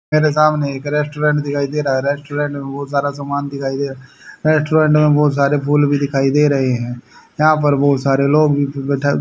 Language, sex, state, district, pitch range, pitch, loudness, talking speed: Hindi, male, Haryana, Charkhi Dadri, 140-150 Hz, 145 Hz, -16 LUFS, 220 wpm